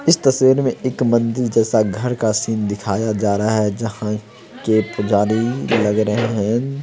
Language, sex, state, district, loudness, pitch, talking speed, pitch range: Hindi, male, Bihar, Samastipur, -18 LUFS, 110 Hz, 175 wpm, 105-120 Hz